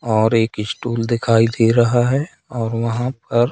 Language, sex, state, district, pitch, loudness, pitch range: Hindi, male, Madhya Pradesh, Katni, 115 Hz, -18 LUFS, 115-120 Hz